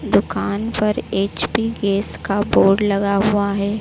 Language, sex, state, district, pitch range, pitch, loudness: Hindi, female, Madhya Pradesh, Dhar, 200-210 Hz, 200 Hz, -19 LUFS